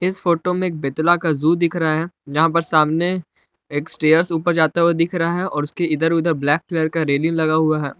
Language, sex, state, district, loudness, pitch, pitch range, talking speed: Hindi, male, Jharkhand, Palamu, -18 LUFS, 165 Hz, 155-170 Hz, 230 wpm